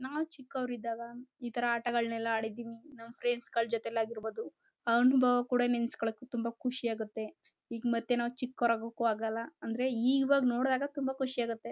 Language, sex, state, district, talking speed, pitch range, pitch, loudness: Kannada, female, Karnataka, Chamarajanagar, 130 wpm, 230-255 Hz, 240 Hz, -33 LUFS